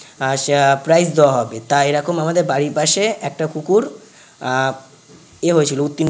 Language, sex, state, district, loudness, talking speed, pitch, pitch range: Bengali, male, West Bengal, North 24 Parganas, -17 LUFS, 150 wpm, 145 Hz, 135-160 Hz